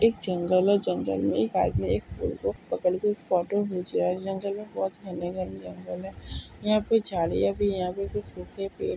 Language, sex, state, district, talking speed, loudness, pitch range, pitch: Hindi, female, Maharashtra, Sindhudurg, 215 wpm, -28 LUFS, 125-200 Hz, 185 Hz